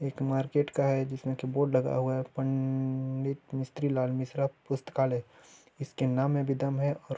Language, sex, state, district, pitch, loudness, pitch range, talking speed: Hindi, male, Chhattisgarh, Bilaspur, 135 Hz, -31 LUFS, 130-140 Hz, 190 wpm